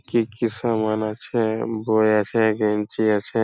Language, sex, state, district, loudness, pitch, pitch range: Bengali, male, West Bengal, Purulia, -22 LUFS, 110 Hz, 110-115 Hz